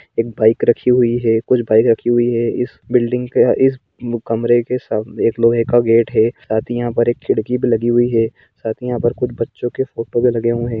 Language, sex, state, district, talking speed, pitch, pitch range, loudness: Hindi, male, Jharkhand, Sahebganj, 240 wpm, 120 Hz, 115-125 Hz, -16 LUFS